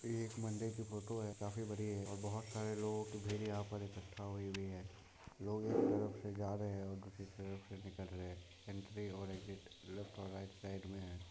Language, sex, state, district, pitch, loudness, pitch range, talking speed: Hindi, male, Bihar, Muzaffarpur, 100 Hz, -45 LUFS, 95-105 Hz, 240 wpm